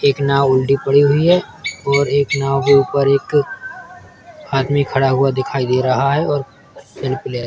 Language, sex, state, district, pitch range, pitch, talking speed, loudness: Hindi, male, Uttar Pradesh, Muzaffarnagar, 135-145 Hz, 140 Hz, 185 wpm, -16 LUFS